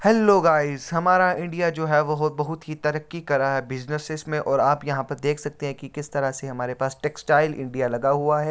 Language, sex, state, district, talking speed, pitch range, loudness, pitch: Hindi, male, Uttar Pradesh, Hamirpur, 240 wpm, 135-155 Hz, -23 LUFS, 150 Hz